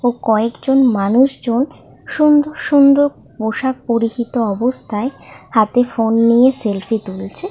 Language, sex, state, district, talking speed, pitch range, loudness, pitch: Bengali, female, West Bengal, Malda, 105 wpm, 225-265 Hz, -15 LUFS, 240 Hz